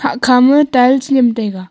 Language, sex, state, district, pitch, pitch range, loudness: Wancho, female, Arunachal Pradesh, Longding, 255 Hz, 240-275 Hz, -12 LUFS